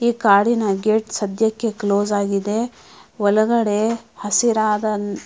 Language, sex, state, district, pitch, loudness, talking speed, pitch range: Kannada, female, Karnataka, Mysore, 215 Hz, -19 LUFS, 105 wpm, 205-225 Hz